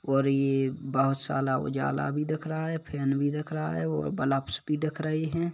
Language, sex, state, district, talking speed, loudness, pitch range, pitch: Hindi, male, Chhattisgarh, Kabirdham, 215 wpm, -29 LUFS, 135-155 Hz, 140 Hz